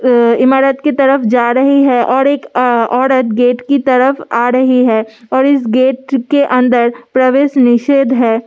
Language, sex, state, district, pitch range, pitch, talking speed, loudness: Hindi, female, Delhi, New Delhi, 245-270 Hz, 255 Hz, 185 wpm, -11 LUFS